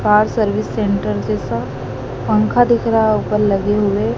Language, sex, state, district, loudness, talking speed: Hindi, male, Madhya Pradesh, Dhar, -17 LUFS, 145 wpm